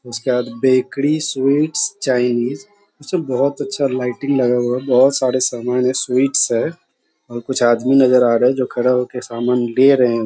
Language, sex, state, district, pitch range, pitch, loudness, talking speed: Hindi, male, Bihar, Sitamarhi, 125-140 Hz, 125 Hz, -17 LUFS, 195 wpm